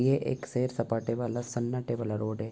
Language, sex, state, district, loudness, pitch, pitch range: Hindi, male, Bihar, Gopalganj, -31 LUFS, 120 Hz, 115-125 Hz